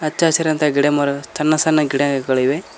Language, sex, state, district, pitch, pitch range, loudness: Kannada, male, Karnataka, Koppal, 150 Hz, 140-155 Hz, -17 LUFS